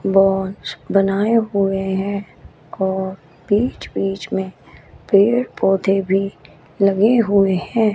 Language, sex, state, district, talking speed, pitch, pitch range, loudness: Hindi, female, Chandigarh, Chandigarh, 105 wpm, 195 Hz, 190-200 Hz, -18 LUFS